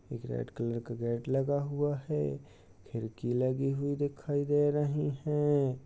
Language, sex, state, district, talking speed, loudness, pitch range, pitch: Hindi, male, Uttar Pradesh, Jyotiba Phule Nagar, 155 wpm, -32 LUFS, 120-145 Hz, 135 Hz